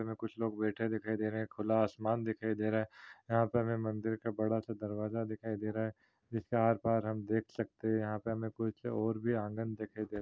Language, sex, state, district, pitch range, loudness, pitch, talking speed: Hindi, male, Chhattisgarh, Rajnandgaon, 110-115 Hz, -36 LUFS, 110 Hz, 245 wpm